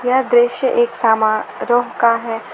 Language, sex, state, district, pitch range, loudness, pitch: Hindi, female, Jharkhand, Garhwa, 230-245 Hz, -16 LUFS, 240 Hz